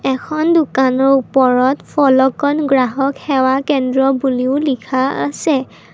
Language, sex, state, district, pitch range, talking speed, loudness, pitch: Assamese, female, Assam, Kamrup Metropolitan, 260-280 Hz, 100 wpm, -15 LUFS, 265 Hz